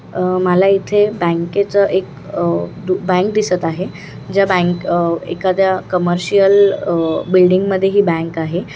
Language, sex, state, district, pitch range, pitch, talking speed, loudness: Marathi, female, Maharashtra, Chandrapur, 175-195 Hz, 185 Hz, 135 wpm, -15 LUFS